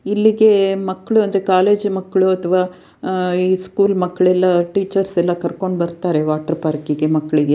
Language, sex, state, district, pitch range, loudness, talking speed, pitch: Kannada, female, Karnataka, Dakshina Kannada, 170-195 Hz, -17 LUFS, 150 wpm, 185 Hz